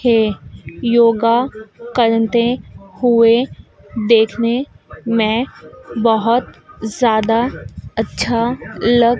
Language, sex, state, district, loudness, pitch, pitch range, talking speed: Hindi, female, Madhya Pradesh, Dhar, -16 LUFS, 230 Hz, 225-240 Hz, 65 wpm